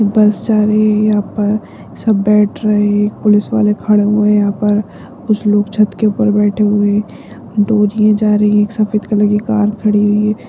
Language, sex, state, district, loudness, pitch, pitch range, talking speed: Hindi, female, Uttarakhand, Tehri Garhwal, -13 LUFS, 210 Hz, 205-215 Hz, 195 wpm